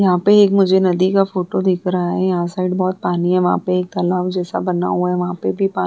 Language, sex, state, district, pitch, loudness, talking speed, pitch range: Hindi, female, Bihar, Vaishali, 180 Hz, -17 LUFS, 315 wpm, 175-190 Hz